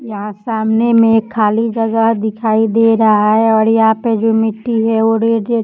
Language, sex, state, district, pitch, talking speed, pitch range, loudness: Hindi, female, Uttar Pradesh, Jyotiba Phule Nagar, 225 Hz, 215 wpm, 220-225 Hz, -13 LUFS